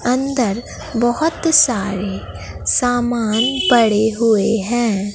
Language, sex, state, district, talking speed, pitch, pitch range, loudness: Hindi, female, Bihar, Katihar, 80 wpm, 235 Hz, 215-245 Hz, -16 LUFS